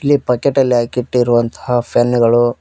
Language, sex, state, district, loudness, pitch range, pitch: Kannada, male, Karnataka, Koppal, -14 LUFS, 120-130 Hz, 120 Hz